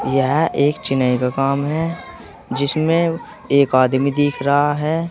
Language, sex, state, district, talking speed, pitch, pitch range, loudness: Hindi, male, Uttar Pradesh, Saharanpur, 140 wpm, 140 Hz, 135-155 Hz, -18 LUFS